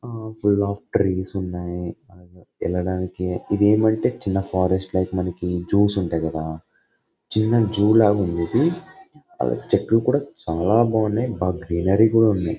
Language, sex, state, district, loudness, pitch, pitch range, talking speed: Telugu, male, Karnataka, Bellary, -21 LUFS, 100 Hz, 90-110 Hz, 125 wpm